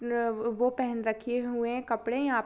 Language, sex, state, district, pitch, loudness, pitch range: Hindi, female, Jharkhand, Sahebganj, 235 Hz, -30 LUFS, 230-245 Hz